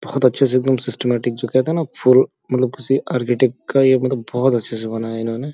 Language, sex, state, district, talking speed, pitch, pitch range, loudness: Hindi, male, Uttar Pradesh, Gorakhpur, 225 wpm, 130 Hz, 120-130 Hz, -18 LUFS